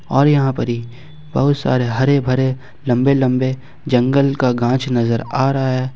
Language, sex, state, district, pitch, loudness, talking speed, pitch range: Hindi, male, Jharkhand, Ranchi, 130 Hz, -17 LUFS, 170 wpm, 125-135 Hz